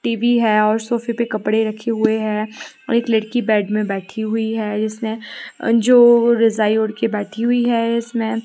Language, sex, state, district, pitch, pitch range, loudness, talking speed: Hindi, female, Himachal Pradesh, Shimla, 225 Hz, 215-235 Hz, -18 LUFS, 185 wpm